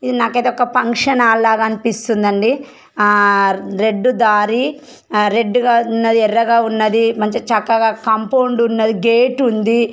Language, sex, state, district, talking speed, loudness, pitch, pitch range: Telugu, female, Telangana, Karimnagar, 135 wpm, -14 LUFS, 230 Hz, 220-245 Hz